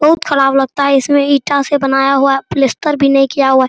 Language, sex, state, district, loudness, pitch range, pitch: Hindi, male, Bihar, Araria, -12 LUFS, 270-285 Hz, 275 Hz